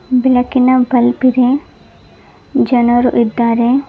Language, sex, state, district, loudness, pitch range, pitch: Kannada, female, Karnataka, Bangalore, -12 LUFS, 240-255 Hz, 250 Hz